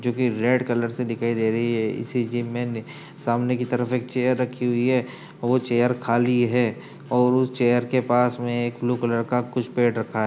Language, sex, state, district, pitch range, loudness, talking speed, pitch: Hindi, male, Uttar Pradesh, Jyotiba Phule Nagar, 120-125 Hz, -23 LUFS, 230 wpm, 120 Hz